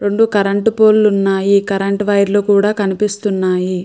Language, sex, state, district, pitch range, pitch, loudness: Telugu, female, Andhra Pradesh, Krishna, 195-210 Hz, 200 Hz, -14 LUFS